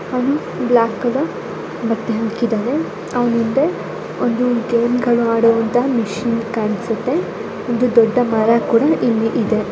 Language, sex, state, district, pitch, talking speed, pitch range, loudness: Kannada, female, Karnataka, Bellary, 235 Hz, 105 wpm, 225-245 Hz, -17 LUFS